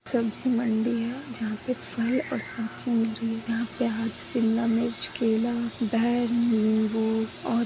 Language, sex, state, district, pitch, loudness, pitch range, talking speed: Hindi, female, Chhattisgarh, Balrampur, 230 Hz, -27 LUFS, 225-235 Hz, 95 wpm